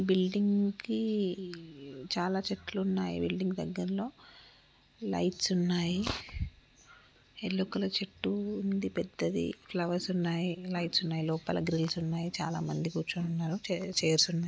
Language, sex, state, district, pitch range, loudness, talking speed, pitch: Telugu, female, Telangana, Karimnagar, 165-195 Hz, -33 LUFS, 110 wpm, 180 Hz